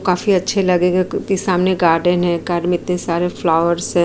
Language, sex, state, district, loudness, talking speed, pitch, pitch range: Hindi, female, Uttar Pradesh, Jyotiba Phule Nagar, -17 LUFS, 195 wpm, 180 Hz, 170-185 Hz